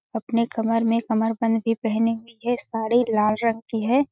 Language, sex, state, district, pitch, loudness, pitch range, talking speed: Hindi, female, Chhattisgarh, Balrampur, 230 Hz, -23 LUFS, 225-235 Hz, 205 wpm